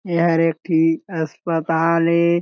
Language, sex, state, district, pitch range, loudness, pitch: Chhattisgarhi, male, Chhattisgarh, Jashpur, 160-170 Hz, -19 LUFS, 165 Hz